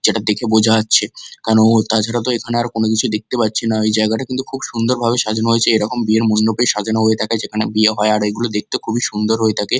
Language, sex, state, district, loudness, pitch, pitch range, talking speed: Bengali, male, West Bengal, Kolkata, -16 LUFS, 110 Hz, 110-115 Hz, 220 wpm